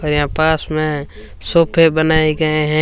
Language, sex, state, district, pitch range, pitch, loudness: Hindi, female, Rajasthan, Bikaner, 150-160 Hz, 155 Hz, -15 LUFS